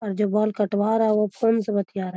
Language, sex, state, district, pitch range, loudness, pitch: Magahi, female, Bihar, Gaya, 200-215 Hz, -22 LUFS, 210 Hz